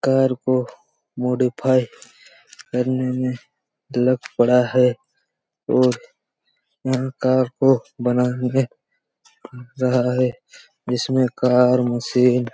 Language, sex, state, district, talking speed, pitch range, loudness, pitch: Hindi, male, Chhattisgarh, Raigarh, 80 wpm, 125-130 Hz, -20 LUFS, 125 Hz